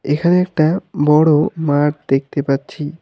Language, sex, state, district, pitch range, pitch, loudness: Bengali, male, West Bengal, Alipurduar, 145-165 Hz, 150 Hz, -16 LUFS